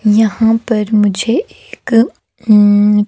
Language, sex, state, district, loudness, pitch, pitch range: Hindi, female, Himachal Pradesh, Shimla, -12 LUFS, 215 Hz, 210-225 Hz